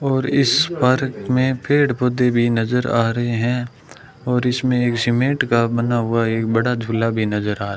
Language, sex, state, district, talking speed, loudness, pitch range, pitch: Hindi, male, Rajasthan, Bikaner, 195 wpm, -18 LUFS, 115-130 Hz, 120 Hz